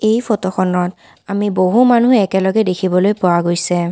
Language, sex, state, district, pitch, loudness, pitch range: Assamese, female, Assam, Kamrup Metropolitan, 190 Hz, -15 LUFS, 180-215 Hz